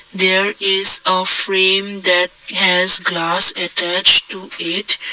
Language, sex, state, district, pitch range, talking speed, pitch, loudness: English, male, Assam, Kamrup Metropolitan, 180-195 Hz, 115 wpm, 190 Hz, -14 LUFS